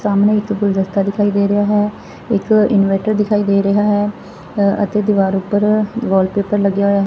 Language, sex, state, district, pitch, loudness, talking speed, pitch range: Punjabi, female, Punjab, Fazilka, 205 Hz, -15 LUFS, 160 wpm, 200-210 Hz